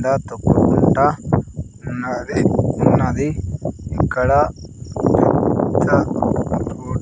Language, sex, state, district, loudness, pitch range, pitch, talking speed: Telugu, male, Andhra Pradesh, Sri Satya Sai, -18 LUFS, 115-130 Hz, 125 Hz, 70 wpm